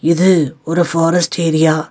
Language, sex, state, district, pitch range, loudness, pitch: Tamil, male, Tamil Nadu, Nilgiris, 160-170 Hz, -14 LUFS, 165 Hz